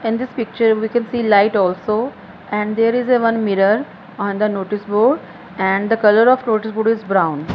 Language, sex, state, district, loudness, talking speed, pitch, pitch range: English, female, Punjab, Fazilka, -17 LUFS, 205 wpm, 220 Hz, 200-230 Hz